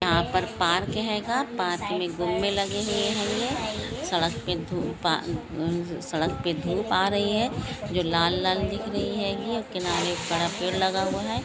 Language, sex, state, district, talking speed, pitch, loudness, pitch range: Hindi, female, Maharashtra, Pune, 160 wpm, 185 Hz, -26 LUFS, 175-210 Hz